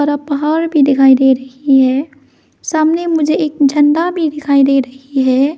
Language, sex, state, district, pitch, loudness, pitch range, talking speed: Hindi, female, Arunachal Pradesh, Lower Dibang Valley, 285 Hz, -13 LUFS, 270-310 Hz, 170 wpm